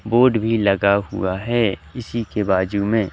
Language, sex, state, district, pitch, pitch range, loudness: Hindi, male, Madhya Pradesh, Katni, 105 Hz, 100-115 Hz, -19 LUFS